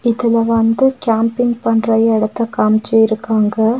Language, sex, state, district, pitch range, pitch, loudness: Tamil, female, Tamil Nadu, Nilgiris, 220-235 Hz, 225 Hz, -14 LUFS